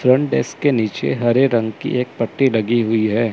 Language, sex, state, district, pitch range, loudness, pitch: Hindi, male, Chandigarh, Chandigarh, 110-130 Hz, -18 LUFS, 120 Hz